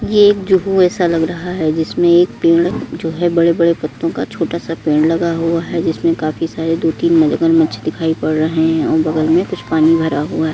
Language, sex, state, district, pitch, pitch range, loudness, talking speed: Hindi, female, Uttar Pradesh, Etah, 165 Hz, 160-170 Hz, -15 LUFS, 220 wpm